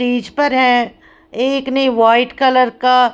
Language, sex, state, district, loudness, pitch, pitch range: Hindi, female, Bihar, Patna, -14 LUFS, 250 Hz, 240-265 Hz